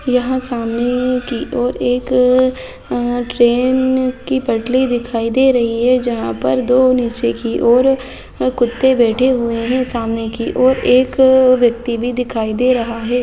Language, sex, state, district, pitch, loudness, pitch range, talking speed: Hindi, female, Bihar, Bhagalpur, 245 Hz, -15 LUFS, 235-255 Hz, 150 wpm